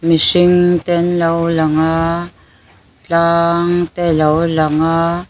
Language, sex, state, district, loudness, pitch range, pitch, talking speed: Mizo, female, Mizoram, Aizawl, -14 LUFS, 160-170 Hz, 165 Hz, 135 wpm